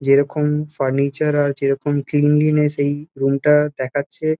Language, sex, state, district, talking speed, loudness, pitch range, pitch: Bengali, male, West Bengal, Kolkata, 125 wpm, -18 LUFS, 140-150 Hz, 145 Hz